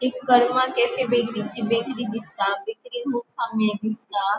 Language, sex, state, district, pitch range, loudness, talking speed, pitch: Konkani, female, Goa, North and South Goa, 220-255 Hz, -23 LUFS, 95 wpm, 240 Hz